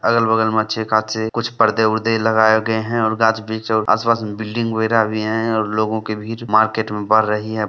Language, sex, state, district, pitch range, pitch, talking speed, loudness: Hindi, male, Bihar, Samastipur, 110-115 Hz, 110 Hz, 205 wpm, -18 LUFS